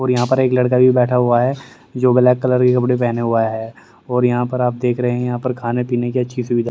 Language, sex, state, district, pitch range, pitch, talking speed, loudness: Hindi, male, Haryana, Rohtak, 120-125 Hz, 125 Hz, 285 wpm, -16 LUFS